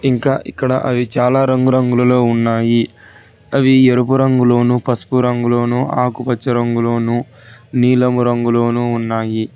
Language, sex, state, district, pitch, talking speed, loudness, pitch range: Telugu, male, Telangana, Hyderabad, 125 Hz, 115 wpm, -15 LUFS, 120-130 Hz